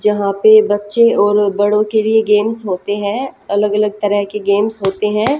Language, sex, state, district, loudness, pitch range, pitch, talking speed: Hindi, female, Haryana, Jhajjar, -14 LUFS, 205-215 Hz, 210 Hz, 190 wpm